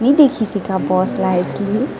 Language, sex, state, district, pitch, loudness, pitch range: Chhattisgarhi, female, Chhattisgarh, Sarguja, 200 Hz, -17 LUFS, 185-250 Hz